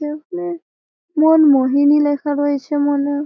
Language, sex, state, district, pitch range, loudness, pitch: Bengali, female, West Bengal, Malda, 285-315 Hz, -16 LUFS, 290 Hz